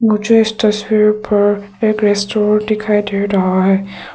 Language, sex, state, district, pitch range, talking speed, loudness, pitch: Hindi, female, Arunachal Pradesh, Papum Pare, 200-215 Hz, 145 wpm, -14 LUFS, 210 Hz